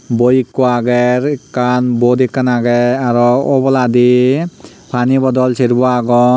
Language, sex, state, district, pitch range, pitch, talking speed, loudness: Chakma, male, Tripura, Unakoti, 120-130 Hz, 125 Hz, 120 wpm, -12 LUFS